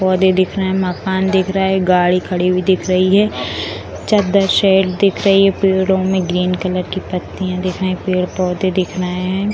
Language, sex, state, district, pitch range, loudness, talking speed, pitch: Hindi, female, Bihar, Purnia, 180-190 Hz, -16 LUFS, 200 wpm, 185 Hz